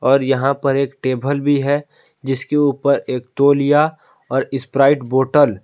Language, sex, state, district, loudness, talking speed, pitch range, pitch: Hindi, male, Jharkhand, Palamu, -17 LUFS, 160 wpm, 135-145 Hz, 140 Hz